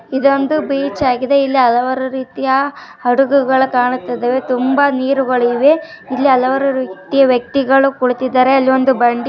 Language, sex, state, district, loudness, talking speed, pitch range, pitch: Kannada, female, Karnataka, Dharwad, -14 LUFS, 115 wpm, 255-275 Hz, 265 Hz